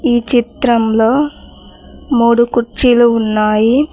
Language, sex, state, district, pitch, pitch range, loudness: Telugu, female, Telangana, Mahabubabad, 235 Hz, 225-250 Hz, -12 LUFS